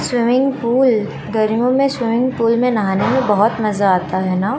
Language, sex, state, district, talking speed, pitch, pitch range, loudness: Hindi, female, Chandigarh, Chandigarh, 185 wpm, 230 Hz, 205-250 Hz, -16 LUFS